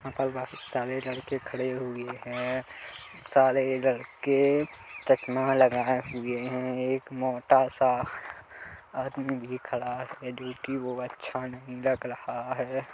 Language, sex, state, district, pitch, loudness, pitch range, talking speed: Hindi, male, Chhattisgarh, Kabirdham, 130 Hz, -29 LUFS, 125-135 Hz, 140 wpm